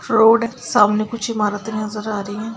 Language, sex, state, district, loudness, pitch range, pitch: Hindi, female, Chhattisgarh, Kabirdham, -18 LUFS, 210-225 Hz, 215 Hz